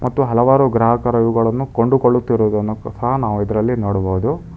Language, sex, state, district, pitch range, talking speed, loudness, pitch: Kannada, male, Karnataka, Bangalore, 110-125 Hz, 120 wpm, -16 LUFS, 115 Hz